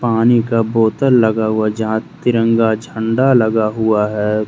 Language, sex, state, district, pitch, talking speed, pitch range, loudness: Hindi, male, Jharkhand, Deoghar, 110 Hz, 145 wpm, 110-115 Hz, -15 LUFS